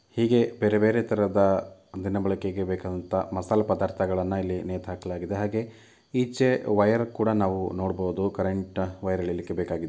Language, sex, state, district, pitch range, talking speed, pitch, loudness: Kannada, male, Karnataka, Mysore, 95-110 Hz, 125 wpm, 95 Hz, -26 LUFS